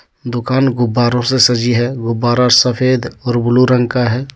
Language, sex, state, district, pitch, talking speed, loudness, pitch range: Hindi, male, Jharkhand, Deoghar, 125 Hz, 165 wpm, -13 LUFS, 120-125 Hz